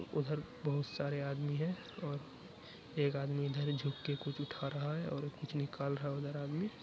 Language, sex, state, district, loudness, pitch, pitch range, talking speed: Hindi, male, Bihar, Araria, -39 LUFS, 145 Hz, 140-150 Hz, 195 wpm